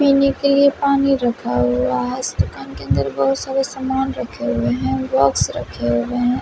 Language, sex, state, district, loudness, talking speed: Hindi, female, Bihar, West Champaran, -19 LUFS, 195 wpm